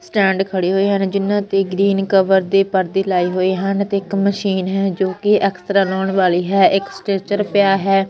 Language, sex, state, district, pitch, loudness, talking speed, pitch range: Punjabi, female, Punjab, Fazilka, 195 Hz, -17 LUFS, 200 wpm, 190-200 Hz